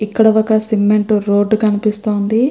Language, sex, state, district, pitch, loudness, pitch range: Telugu, female, Andhra Pradesh, Krishna, 215 Hz, -14 LUFS, 210-220 Hz